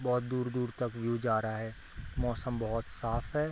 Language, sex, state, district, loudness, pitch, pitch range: Hindi, male, Bihar, Gopalganj, -35 LUFS, 120 Hz, 115-125 Hz